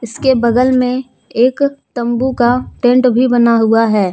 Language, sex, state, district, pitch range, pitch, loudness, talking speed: Hindi, female, Jharkhand, Deoghar, 235-255 Hz, 245 Hz, -13 LUFS, 160 wpm